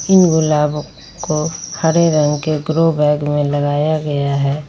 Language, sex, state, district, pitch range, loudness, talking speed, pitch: Hindi, female, Jharkhand, Ranchi, 145-160 Hz, -16 LUFS, 140 wpm, 150 Hz